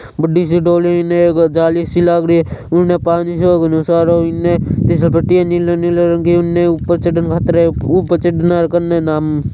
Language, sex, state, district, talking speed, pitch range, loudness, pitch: Hindi, male, Rajasthan, Churu, 165 wpm, 165-175 Hz, -13 LUFS, 170 Hz